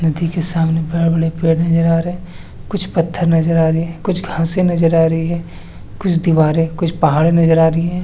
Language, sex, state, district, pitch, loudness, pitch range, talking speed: Hindi, male, Jharkhand, Sahebganj, 165 Hz, -15 LUFS, 165-170 Hz, 225 wpm